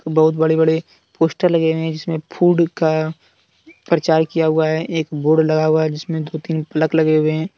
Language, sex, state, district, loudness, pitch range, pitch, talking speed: Hindi, male, Jharkhand, Deoghar, -17 LUFS, 155-165 Hz, 160 Hz, 200 wpm